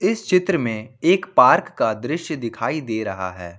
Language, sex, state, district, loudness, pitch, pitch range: Hindi, male, Jharkhand, Ranchi, -20 LUFS, 145 Hz, 110-180 Hz